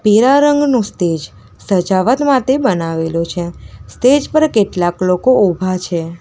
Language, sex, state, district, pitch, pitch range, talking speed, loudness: Gujarati, female, Gujarat, Valsad, 185 Hz, 175-260 Hz, 115 wpm, -14 LUFS